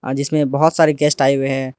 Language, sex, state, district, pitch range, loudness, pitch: Hindi, male, Arunachal Pradesh, Lower Dibang Valley, 135-155 Hz, -16 LUFS, 140 Hz